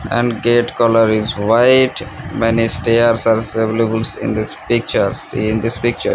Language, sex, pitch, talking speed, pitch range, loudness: English, male, 115 Hz, 155 wpm, 110-120 Hz, -15 LUFS